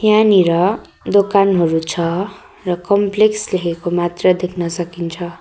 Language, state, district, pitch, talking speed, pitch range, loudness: Nepali, West Bengal, Darjeeling, 180 Hz, 100 wpm, 175-200 Hz, -16 LUFS